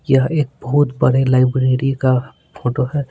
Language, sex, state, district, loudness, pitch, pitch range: Hindi, male, Bihar, Patna, -17 LUFS, 130 Hz, 130-140 Hz